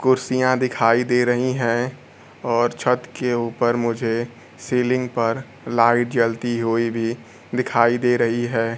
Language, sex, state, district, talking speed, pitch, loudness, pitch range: Hindi, male, Bihar, Kaimur, 135 wpm, 120 Hz, -20 LUFS, 115-125 Hz